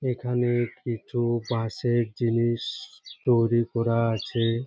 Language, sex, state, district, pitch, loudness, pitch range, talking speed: Bengali, male, West Bengal, Jhargram, 120 Hz, -26 LUFS, 115-120 Hz, 90 wpm